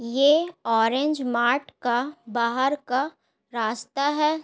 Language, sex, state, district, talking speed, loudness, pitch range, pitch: Hindi, female, Bihar, Gaya, 110 wpm, -24 LUFS, 235-295 Hz, 260 Hz